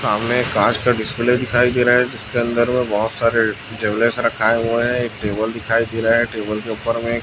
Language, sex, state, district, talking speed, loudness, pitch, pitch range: Hindi, male, Chhattisgarh, Raipur, 240 wpm, -18 LUFS, 115 Hz, 110-120 Hz